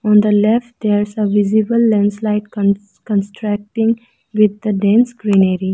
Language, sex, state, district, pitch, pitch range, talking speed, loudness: English, female, Arunachal Pradesh, Lower Dibang Valley, 210 Hz, 205-225 Hz, 135 wpm, -16 LUFS